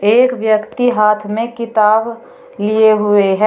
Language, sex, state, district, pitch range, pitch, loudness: Hindi, female, Uttar Pradesh, Shamli, 210-235 Hz, 215 Hz, -14 LUFS